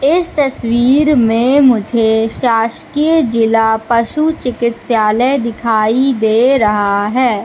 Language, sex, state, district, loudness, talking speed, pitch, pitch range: Hindi, female, Madhya Pradesh, Katni, -13 LUFS, 95 wpm, 235 Hz, 225-270 Hz